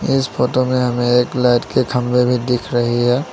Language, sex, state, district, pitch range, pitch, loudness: Hindi, male, Assam, Sonitpur, 120-125 Hz, 125 Hz, -16 LUFS